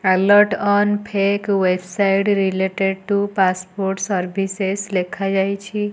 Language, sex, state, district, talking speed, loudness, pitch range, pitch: Odia, female, Odisha, Nuapada, 100 wpm, -19 LUFS, 190-205 Hz, 195 Hz